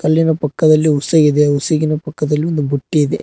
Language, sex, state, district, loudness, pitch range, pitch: Kannada, male, Karnataka, Koppal, -15 LUFS, 150-155 Hz, 155 Hz